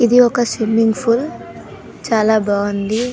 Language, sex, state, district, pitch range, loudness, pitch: Telugu, female, Telangana, Nalgonda, 215-240 Hz, -16 LUFS, 225 Hz